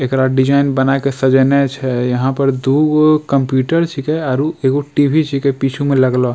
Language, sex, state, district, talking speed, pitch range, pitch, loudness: Angika, male, Bihar, Bhagalpur, 170 wpm, 130-145 Hz, 135 Hz, -14 LUFS